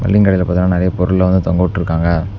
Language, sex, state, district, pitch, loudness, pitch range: Tamil, male, Tamil Nadu, Namakkal, 90 Hz, -14 LUFS, 90-95 Hz